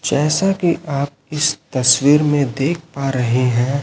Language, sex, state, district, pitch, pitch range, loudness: Hindi, male, Chhattisgarh, Raipur, 140 Hz, 135-150 Hz, -17 LUFS